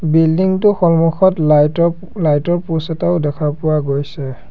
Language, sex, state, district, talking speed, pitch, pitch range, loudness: Assamese, male, Assam, Sonitpur, 160 wpm, 165 Hz, 150-175 Hz, -15 LUFS